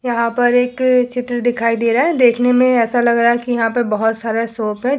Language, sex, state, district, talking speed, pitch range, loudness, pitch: Hindi, female, Uttar Pradesh, Hamirpur, 250 wpm, 230-245 Hz, -15 LUFS, 240 Hz